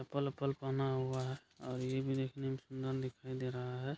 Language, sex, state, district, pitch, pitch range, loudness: Hindi, male, Bihar, Madhepura, 130 Hz, 130-135 Hz, -40 LUFS